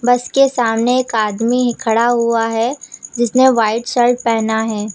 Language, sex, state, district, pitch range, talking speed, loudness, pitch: Hindi, female, Uttar Pradesh, Lucknow, 225-245 Hz, 160 wpm, -15 LUFS, 235 Hz